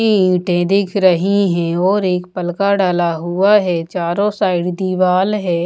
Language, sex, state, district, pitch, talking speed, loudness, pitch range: Hindi, female, Bihar, Patna, 185 Hz, 160 wpm, -15 LUFS, 175-200 Hz